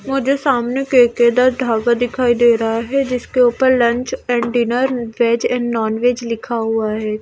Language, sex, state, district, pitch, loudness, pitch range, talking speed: Hindi, female, Delhi, New Delhi, 240 Hz, -16 LUFS, 230-250 Hz, 165 wpm